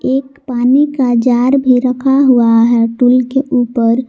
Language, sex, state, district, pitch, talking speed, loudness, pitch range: Hindi, female, Jharkhand, Garhwa, 250 Hz, 160 wpm, -11 LUFS, 240-270 Hz